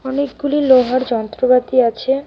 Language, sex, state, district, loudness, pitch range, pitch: Bengali, female, West Bengal, Alipurduar, -15 LUFS, 250-275 Hz, 260 Hz